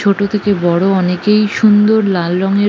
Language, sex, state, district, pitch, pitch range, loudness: Bengali, female, West Bengal, North 24 Parganas, 200 Hz, 185-210 Hz, -12 LUFS